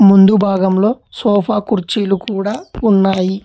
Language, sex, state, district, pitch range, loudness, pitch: Telugu, male, Telangana, Hyderabad, 195-215 Hz, -14 LUFS, 200 Hz